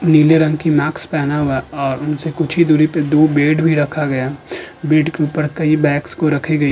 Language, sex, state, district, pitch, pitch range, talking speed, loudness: Hindi, male, Uttar Pradesh, Budaun, 155 Hz, 145-155 Hz, 215 wpm, -15 LUFS